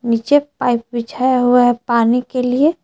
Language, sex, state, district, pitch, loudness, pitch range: Hindi, female, Jharkhand, Palamu, 245 Hz, -15 LUFS, 235-260 Hz